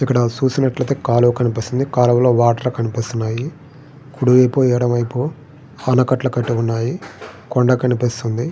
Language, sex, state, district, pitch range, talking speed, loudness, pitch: Telugu, male, Andhra Pradesh, Srikakulam, 120-135 Hz, 125 wpm, -17 LUFS, 125 Hz